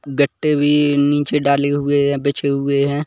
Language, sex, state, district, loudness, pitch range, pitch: Hindi, male, Chhattisgarh, Kabirdham, -17 LUFS, 140-145 Hz, 145 Hz